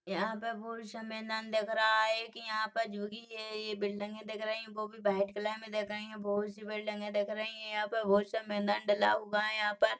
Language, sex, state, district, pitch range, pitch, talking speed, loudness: Hindi, female, Chhattisgarh, Rajnandgaon, 210-220 Hz, 215 Hz, 250 wpm, -34 LUFS